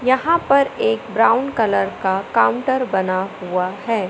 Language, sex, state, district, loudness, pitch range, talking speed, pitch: Hindi, male, Madhya Pradesh, Katni, -18 LUFS, 185-260 Hz, 145 wpm, 215 Hz